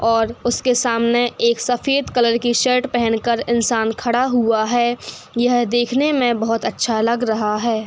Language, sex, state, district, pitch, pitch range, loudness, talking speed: Hindi, female, Uttar Pradesh, Hamirpur, 235 Hz, 230-245 Hz, -18 LUFS, 170 wpm